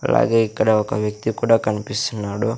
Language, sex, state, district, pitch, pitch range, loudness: Telugu, male, Andhra Pradesh, Sri Satya Sai, 110 Hz, 105-115 Hz, -20 LUFS